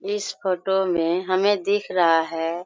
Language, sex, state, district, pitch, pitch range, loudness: Hindi, female, Jharkhand, Sahebganj, 185 Hz, 170-195 Hz, -22 LUFS